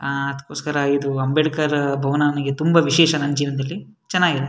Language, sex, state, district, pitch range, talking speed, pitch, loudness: Kannada, male, Karnataka, Shimoga, 140-155 Hz, 145 wpm, 145 Hz, -20 LUFS